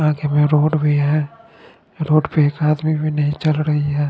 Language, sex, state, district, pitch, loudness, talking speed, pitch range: Hindi, male, Punjab, Fazilka, 150 Hz, -17 LUFS, 205 wpm, 150-155 Hz